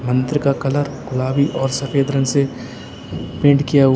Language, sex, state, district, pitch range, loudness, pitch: Hindi, male, Uttar Pradesh, Lalitpur, 130-140 Hz, -18 LUFS, 140 Hz